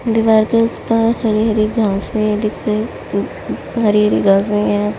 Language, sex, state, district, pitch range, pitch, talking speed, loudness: Hindi, female, Delhi, New Delhi, 210-225 Hz, 215 Hz, 170 wpm, -16 LUFS